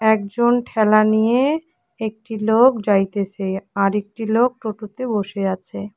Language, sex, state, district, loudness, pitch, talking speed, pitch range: Bengali, female, West Bengal, Cooch Behar, -19 LUFS, 215 Hz, 120 wpm, 200-230 Hz